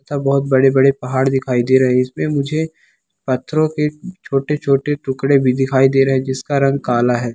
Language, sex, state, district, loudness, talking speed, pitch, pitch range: Hindi, male, Bihar, Samastipur, -16 LUFS, 185 wpm, 135 Hz, 130-145 Hz